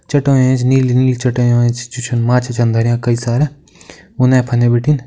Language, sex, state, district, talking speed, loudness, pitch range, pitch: Kumaoni, male, Uttarakhand, Uttarkashi, 175 wpm, -14 LUFS, 120-130 Hz, 125 Hz